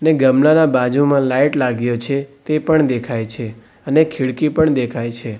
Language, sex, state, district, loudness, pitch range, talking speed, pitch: Gujarati, male, Gujarat, Valsad, -16 LUFS, 120-150 Hz, 165 wpm, 135 Hz